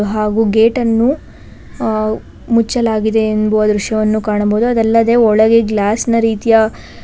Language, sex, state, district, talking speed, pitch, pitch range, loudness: Kannada, female, Karnataka, Bangalore, 100 wpm, 220 Hz, 215-230 Hz, -13 LUFS